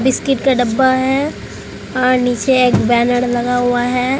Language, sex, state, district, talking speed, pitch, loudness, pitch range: Hindi, female, Bihar, Katihar, 155 wpm, 255 Hz, -15 LUFS, 245-260 Hz